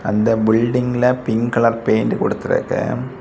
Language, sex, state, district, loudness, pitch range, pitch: Tamil, male, Tamil Nadu, Kanyakumari, -18 LUFS, 115-125 Hz, 120 Hz